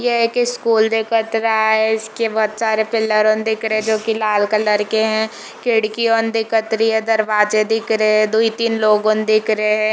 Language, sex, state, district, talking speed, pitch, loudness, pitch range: Hindi, female, Chhattisgarh, Bilaspur, 205 wpm, 220 Hz, -17 LUFS, 215-225 Hz